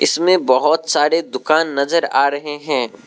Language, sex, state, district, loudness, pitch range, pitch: Hindi, male, Arunachal Pradesh, Lower Dibang Valley, -16 LUFS, 140-165 Hz, 150 Hz